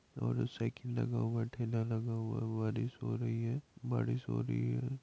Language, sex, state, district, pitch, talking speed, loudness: Hindi, male, Bihar, Madhepura, 115 Hz, 205 wpm, -37 LUFS